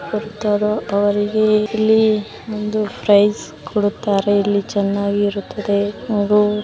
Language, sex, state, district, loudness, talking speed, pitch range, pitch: Kannada, female, Karnataka, Mysore, -18 LUFS, 80 wpm, 200-215 Hz, 205 Hz